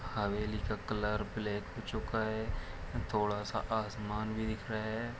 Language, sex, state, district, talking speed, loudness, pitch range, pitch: Hindi, male, Jharkhand, Jamtara, 160 wpm, -37 LUFS, 105-110 Hz, 110 Hz